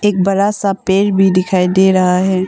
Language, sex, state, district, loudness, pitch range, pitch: Hindi, female, Arunachal Pradesh, Longding, -13 LUFS, 185-195 Hz, 190 Hz